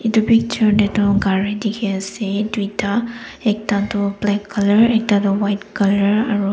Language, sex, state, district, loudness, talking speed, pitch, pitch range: Nagamese, female, Nagaland, Dimapur, -18 LUFS, 155 wpm, 205 Hz, 200-215 Hz